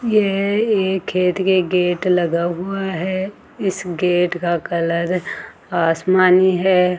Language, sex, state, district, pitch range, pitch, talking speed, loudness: Hindi, female, Rajasthan, Jaipur, 175-190 Hz, 185 Hz, 120 wpm, -18 LUFS